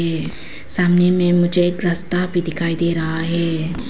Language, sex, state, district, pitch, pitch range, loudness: Hindi, female, Arunachal Pradesh, Papum Pare, 175 Hz, 165-175 Hz, -18 LUFS